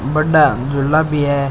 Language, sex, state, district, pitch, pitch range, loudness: Rajasthani, male, Rajasthan, Churu, 145 Hz, 140-155 Hz, -15 LUFS